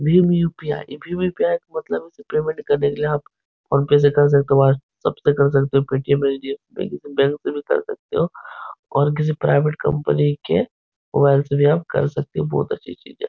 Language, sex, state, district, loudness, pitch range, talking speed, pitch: Hindi, male, Uttar Pradesh, Etah, -20 LUFS, 140-180 Hz, 215 wpm, 145 Hz